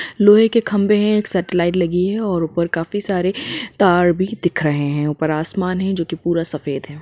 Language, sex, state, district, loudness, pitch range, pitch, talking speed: Hindi, female, Jharkhand, Jamtara, -18 LUFS, 165-200 Hz, 180 Hz, 215 wpm